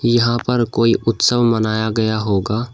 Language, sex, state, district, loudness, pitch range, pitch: Hindi, male, Uttar Pradesh, Shamli, -17 LUFS, 110-120 Hz, 115 Hz